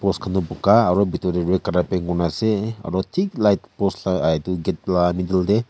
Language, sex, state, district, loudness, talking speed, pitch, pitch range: Nagamese, male, Nagaland, Kohima, -21 LUFS, 180 wpm, 95 Hz, 90-100 Hz